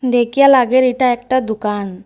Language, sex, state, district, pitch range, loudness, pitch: Bengali, female, Assam, Hailakandi, 220-260 Hz, -14 LUFS, 250 Hz